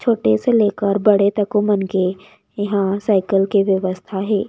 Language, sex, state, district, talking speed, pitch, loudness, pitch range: Chhattisgarhi, female, Chhattisgarh, Raigarh, 160 wpm, 200 Hz, -17 LUFS, 195-210 Hz